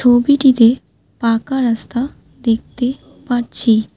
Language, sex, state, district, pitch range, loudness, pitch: Bengali, female, West Bengal, Alipurduar, 230-260 Hz, -16 LUFS, 240 Hz